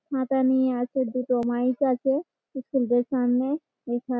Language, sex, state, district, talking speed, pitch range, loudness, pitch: Bengali, female, West Bengal, Malda, 115 wpm, 245-265 Hz, -25 LUFS, 260 Hz